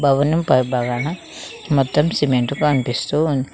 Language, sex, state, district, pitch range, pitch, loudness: Telugu, female, Telangana, Mahabubabad, 130-150 Hz, 140 Hz, -18 LUFS